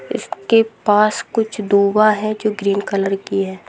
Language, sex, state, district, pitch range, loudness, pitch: Hindi, female, Bihar, Gopalganj, 200-215 Hz, -17 LUFS, 210 Hz